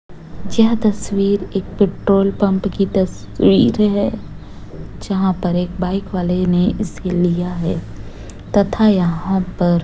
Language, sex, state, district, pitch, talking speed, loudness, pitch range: Hindi, female, Chhattisgarh, Raipur, 190 Hz, 130 wpm, -17 LUFS, 180-200 Hz